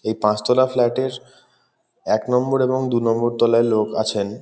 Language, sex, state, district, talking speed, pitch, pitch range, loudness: Bengali, male, West Bengal, Kolkata, 165 wpm, 120 Hz, 110-130 Hz, -19 LUFS